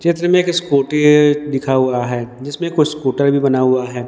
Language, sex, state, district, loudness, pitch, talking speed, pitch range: Hindi, male, Madhya Pradesh, Dhar, -15 LUFS, 140 Hz, 220 wpm, 130-150 Hz